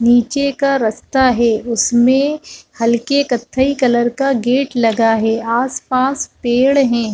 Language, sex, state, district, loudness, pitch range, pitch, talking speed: Hindi, female, Chhattisgarh, Bastar, -15 LUFS, 235-275 Hz, 245 Hz, 150 wpm